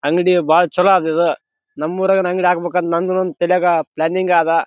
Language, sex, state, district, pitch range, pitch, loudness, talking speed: Kannada, male, Karnataka, Raichur, 170-185 Hz, 180 Hz, -16 LUFS, 165 wpm